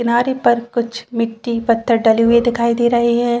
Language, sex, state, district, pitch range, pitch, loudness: Hindi, female, Chhattisgarh, Bastar, 230-240 Hz, 235 Hz, -16 LUFS